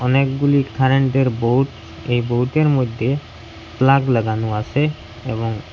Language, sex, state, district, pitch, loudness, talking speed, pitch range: Bengali, male, Assam, Hailakandi, 125 Hz, -18 LUFS, 105 wpm, 110-135 Hz